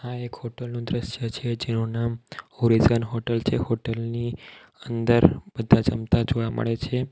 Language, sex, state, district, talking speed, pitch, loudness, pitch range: Gujarati, male, Gujarat, Valsad, 150 wpm, 115 Hz, -24 LUFS, 115-120 Hz